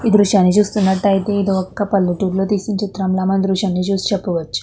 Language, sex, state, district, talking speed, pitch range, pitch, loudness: Telugu, female, Andhra Pradesh, Krishna, 130 wpm, 190-205 Hz, 195 Hz, -17 LUFS